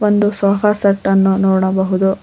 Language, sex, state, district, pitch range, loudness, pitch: Kannada, female, Karnataka, Koppal, 190-205 Hz, -14 LUFS, 195 Hz